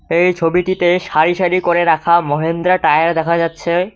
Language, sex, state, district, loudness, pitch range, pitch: Bengali, male, West Bengal, Cooch Behar, -14 LUFS, 165-180 Hz, 170 Hz